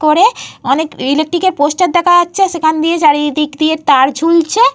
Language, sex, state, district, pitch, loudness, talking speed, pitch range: Bengali, female, Jharkhand, Jamtara, 320 Hz, -12 LUFS, 175 wpm, 295-350 Hz